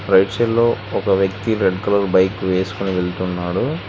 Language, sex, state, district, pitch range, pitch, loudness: Telugu, male, Telangana, Hyderabad, 95-100 Hz, 95 Hz, -18 LUFS